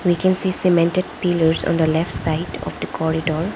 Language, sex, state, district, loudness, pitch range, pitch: English, female, Arunachal Pradesh, Lower Dibang Valley, -18 LUFS, 160-185 Hz, 170 Hz